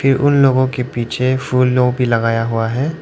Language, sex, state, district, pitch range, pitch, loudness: Hindi, male, Arunachal Pradesh, Lower Dibang Valley, 120-135 Hz, 125 Hz, -15 LUFS